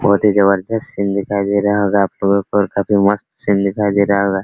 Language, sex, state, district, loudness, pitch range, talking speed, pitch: Hindi, male, Bihar, Araria, -16 LUFS, 100-105 Hz, 240 wpm, 100 Hz